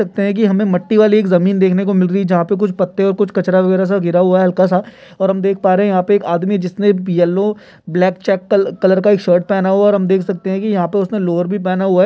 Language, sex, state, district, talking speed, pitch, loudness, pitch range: Hindi, male, Bihar, Kishanganj, 305 wpm, 190 Hz, -14 LUFS, 185-200 Hz